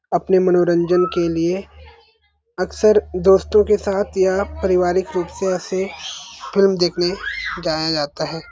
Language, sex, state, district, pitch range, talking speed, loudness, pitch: Hindi, male, Chhattisgarh, Sarguja, 175-195 Hz, 125 wpm, -18 LUFS, 185 Hz